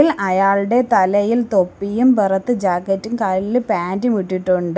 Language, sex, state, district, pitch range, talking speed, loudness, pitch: Malayalam, female, Kerala, Kollam, 185-235 Hz, 100 wpm, -17 LUFS, 200 Hz